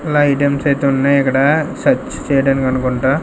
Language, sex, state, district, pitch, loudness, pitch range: Telugu, male, Andhra Pradesh, Sri Satya Sai, 140 Hz, -15 LUFS, 135-145 Hz